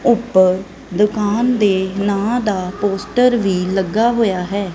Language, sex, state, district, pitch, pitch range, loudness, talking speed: Punjabi, female, Punjab, Kapurthala, 205 Hz, 190-230 Hz, -16 LUFS, 125 wpm